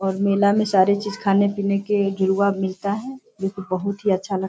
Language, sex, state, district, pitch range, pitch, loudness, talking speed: Hindi, female, Bihar, Sitamarhi, 195-200 Hz, 200 Hz, -21 LUFS, 200 wpm